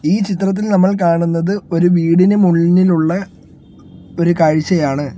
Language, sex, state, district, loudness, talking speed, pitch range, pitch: Malayalam, male, Kerala, Kollam, -14 LUFS, 105 wpm, 165-190 Hz, 175 Hz